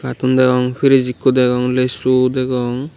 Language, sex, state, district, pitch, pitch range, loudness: Chakma, male, Tripura, Unakoti, 130 Hz, 125-130 Hz, -15 LUFS